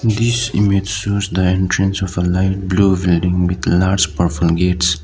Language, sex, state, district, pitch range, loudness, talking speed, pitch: English, male, Sikkim, Gangtok, 90-100 Hz, -16 LUFS, 165 wpm, 95 Hz